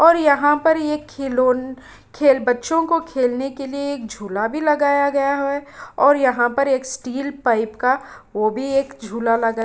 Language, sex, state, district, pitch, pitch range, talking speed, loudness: Hindi, female, Bihar, Kishanganj, 275 Hz, 245-285 Hz, 185 wpm, -19 LUFS